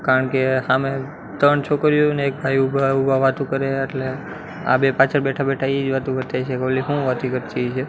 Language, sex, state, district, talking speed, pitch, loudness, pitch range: Gujarati, male, Gujarat, Gandhinagar, 220 wpm, 135 Hz, -20 LUFS, 130-140 Hz